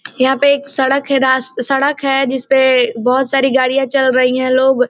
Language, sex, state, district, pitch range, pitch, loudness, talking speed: Hindi, female, Bihar, Gopalganj, 255-270 Hz, 265 Hz, -13 LUFS, 210 wpm